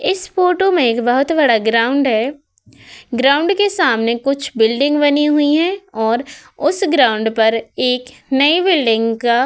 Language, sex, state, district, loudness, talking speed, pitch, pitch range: Hindi, female, Uttar Pradesh, Hamirpur, -15 LUFS, 145 wpm, 275 Hz, 230-310 Hz